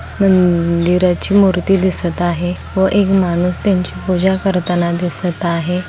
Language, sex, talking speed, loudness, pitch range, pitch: Marathi, female, 120 wpm, -15 LUFS, 175-190 Hz, 180 Hz